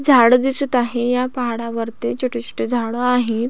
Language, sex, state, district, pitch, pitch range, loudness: Marathi, female, Maharashtra, Solapur, 245 Hz, 235-250 Hz, -18 LUFS